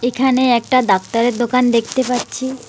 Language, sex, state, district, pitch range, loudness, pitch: Bengali, female, West Bengal, Alipurduar, 235-255 Hz, -16 LUFS, 250 Hz